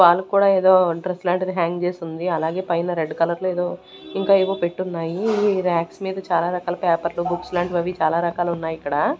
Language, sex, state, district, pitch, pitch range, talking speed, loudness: Telugu, female, Andhra Pradesh, Sri Satya Sai, 175 Hz, 170-185 Hz, 195 wpm, -21 LUFS